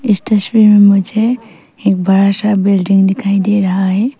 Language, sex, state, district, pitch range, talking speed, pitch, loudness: Hindi, female, Arunachal Pradesh, Papum Pare, 195-215 Hz, 170 wpm, 200 Hz, -12 LUFS